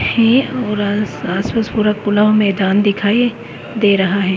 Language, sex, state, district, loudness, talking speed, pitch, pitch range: Hindi, male, West Bengal, Jalpaiguri, -15 LUFS, 165 wpm, 210 Hz, 200-225 Hz